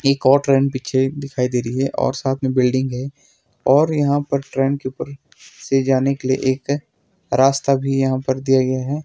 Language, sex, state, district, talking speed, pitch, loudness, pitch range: Hindi, male, Himachal Pradesh, Shimla, 205 wpm, 135 Hz, -19 LUFS, 130-140 Hz